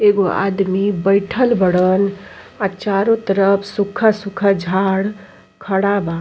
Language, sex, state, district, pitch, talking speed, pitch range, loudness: Bhojpuri, female, Uttar Pradesh, Ghazipur, 195 Hz, 115 wpm, 195-205 Hz, -17 LUFS